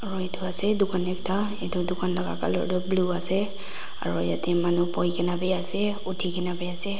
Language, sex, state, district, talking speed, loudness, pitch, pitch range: Nagamese, female, Nagaland, Dimapur, 190 wpm, -24 LUFS, 180 Hz, 180-195 Hz